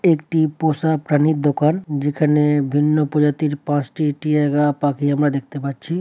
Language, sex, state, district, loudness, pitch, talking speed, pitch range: Bengali, male, West Bengal, Dakshin Dinajpur, -19 LUFS, 150 Hz, 130 wpm, 145-155 Hz